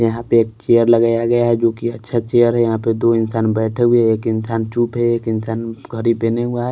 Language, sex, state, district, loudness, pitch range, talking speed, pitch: Hindi, male, Maharashtra, Washim, -17 LUFS, 115-120 Hz, 260 wpm, 115 Hz